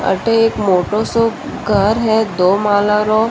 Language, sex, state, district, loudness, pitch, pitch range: Marwari, female, Rajasthan, Churu, -15 LUFS, 210 Hz, 200-225 Hz